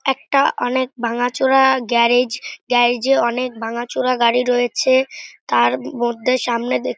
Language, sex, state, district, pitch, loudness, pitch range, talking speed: Bengali, male, West Bengal, North 24 Parganas, 245 Hz, -17 LUFS, 235-260 Hz, 120 wpm